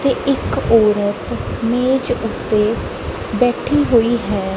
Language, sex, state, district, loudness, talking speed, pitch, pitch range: Punjabi, female, Punjab, Kapurthala, -17 LUFS, 105 wpm, 235 Hz, 210-260 Hz